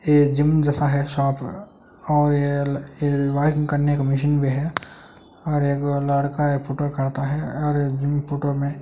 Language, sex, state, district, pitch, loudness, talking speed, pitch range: Hindi, male, Maharashtra, Aurangabad, 145 Hz, -22 LUFS, 170 wpm, 140-145 Hz